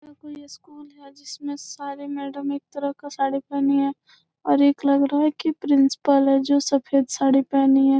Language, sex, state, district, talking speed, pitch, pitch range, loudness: Hindi, female, Bihar, Gopalganj, 195 wpm, 280 Hz, 275-285 Hz, -21 LUFS